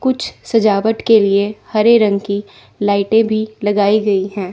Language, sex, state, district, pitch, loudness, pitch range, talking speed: Hindi, female, Chandigarh, Chandigarh, 210 Hz, -15 LUFS, 200-225 Hz, 160 wpm